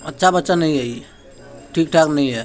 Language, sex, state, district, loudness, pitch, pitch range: Maithili, male, Bihar, Supaul, -17 LUFS, 155 Hz, 140-170 Hz